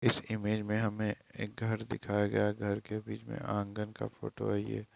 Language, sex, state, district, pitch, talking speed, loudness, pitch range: Hindi, female, Bihar, East Champaran, 105 Hz, 220 wpm, -35 LUFS, 105-110 Hz